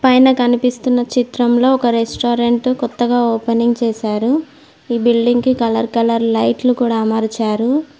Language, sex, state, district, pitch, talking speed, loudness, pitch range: Telugu, female, Telangana, Mahabubabad, 240 Hz, 120 wpm, -15 LUFS, 230-250 Hz